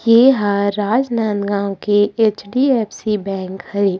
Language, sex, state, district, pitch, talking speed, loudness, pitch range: Chhattisgarhi, female, Chhattisgarh, Rajnandgaon, 205 Hz, 120 wpm, -17 LUFS, 200-230 Hz